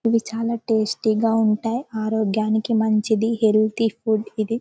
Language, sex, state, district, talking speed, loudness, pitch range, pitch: Telugu, female, Telangana, Karimnagar, 130 wpm, -21 LUFS, 215-230 Hz, 220 Hz